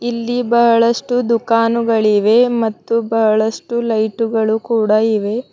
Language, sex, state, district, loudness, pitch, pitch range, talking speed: Kannada, female, Karnataka, Bidar, -15 LUFS, 230 Hz, 220-235 Hz, 85 wpm